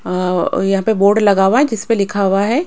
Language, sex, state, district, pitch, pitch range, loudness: Hindi, female, Maharashtra, Mumbai Suburban, 200 Hz, 195-220 Hz, -14 LUFS